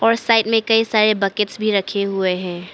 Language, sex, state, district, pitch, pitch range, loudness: Hindi, male, Arunachal Pradesh, Papum Pare, 215 Hz, 195-225 Hz, -18 LUFS